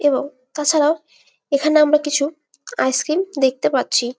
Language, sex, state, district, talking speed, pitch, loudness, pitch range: Bengali, female, West Bengal, Malda, 115 wpm, 295 Hz, -18 LUFS, 275-305 Hz